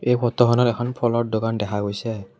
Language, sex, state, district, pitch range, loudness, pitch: Assamese, male, Assam, Kamrup Metropolitan, 105-120 Hz, -21 LUFS, 115 Hz